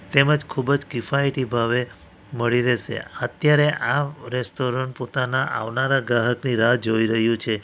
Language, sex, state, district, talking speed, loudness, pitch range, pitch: Gujarati, male, Gujarat, Valsad, 135 wpm, -22 LUFS, 115-135 Hz, 125 Hz